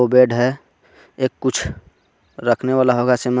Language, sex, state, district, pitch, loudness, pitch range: Hindi, male, Jharkhand, Garhwa, 125 Hz, -18 LUFS, 125-130 Hz